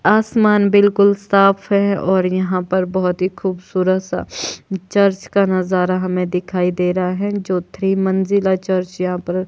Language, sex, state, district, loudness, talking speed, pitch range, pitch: Hindi, female, Himachal Pradesh, Shimla, -17 LUFS, 160 wpm, 185-200 Hz, 190 Hz